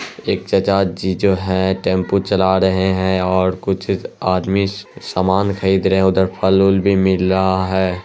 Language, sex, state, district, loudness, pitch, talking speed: Hindi, male, Bihar, Araria, -16 LUFS, 95 Hz, 165 wpm